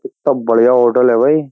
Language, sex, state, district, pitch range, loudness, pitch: Hindi, male, Uttar Pradesh, Jyotiba Phule Nagar, 120-150 Hz, -12 LUFS, 125 Hz